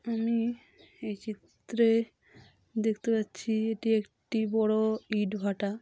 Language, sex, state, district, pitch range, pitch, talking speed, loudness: Bengali, female, West Bengal, Dakshin Dinajpur, 210-225 Hz, 220 Hz, 105 wpm, -30 LUFS